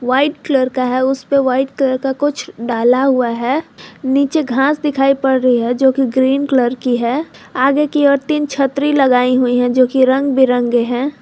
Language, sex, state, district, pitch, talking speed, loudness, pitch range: Hindi, female, Jharkhand, Garhwa, 265 Hz, 205 wpm, -15 LUFS, 250-280 Hz